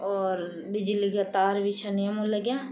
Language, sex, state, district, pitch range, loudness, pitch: Garhwali, female, Uttarakhand, Tehri Garhwal, 195-210 Hz, -28 LUFS, 200 Hz